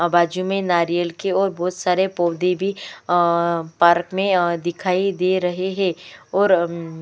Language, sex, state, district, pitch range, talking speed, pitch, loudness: Hindi, female, Chhattisgarh, Sukma, 170-190 Hz, 180 wpm, 180 Hz, -20 LUFS